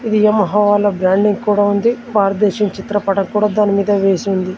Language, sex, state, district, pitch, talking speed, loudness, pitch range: Telugu, male, Telangana, Komaram Bheem, 205 Hz, 155 wpm, -15 LUFS, 195-210 Hz